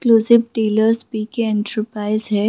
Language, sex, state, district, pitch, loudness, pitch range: Hindi, female, Jharkhand, Sahebganj, 220 Hz, -18 LUFS, 215-230 Hz